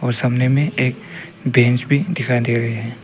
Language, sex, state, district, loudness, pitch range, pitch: Hindi, male, Arunachal Pradesh, Papum Pare, -18 LUFS, 120-140 Hz, 125 Hz